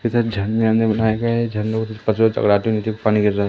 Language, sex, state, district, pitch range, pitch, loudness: Hindi, male, Madhya Pradesh, Umaria, 105-115 Hz, 110 Hz, -19 LUFS